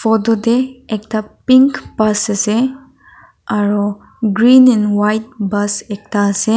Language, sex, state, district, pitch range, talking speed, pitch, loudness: Nagamese, female, Nagaland, Dimapur, 205-240 Hz, 120 wpm, 215 Hz, -14 LUFS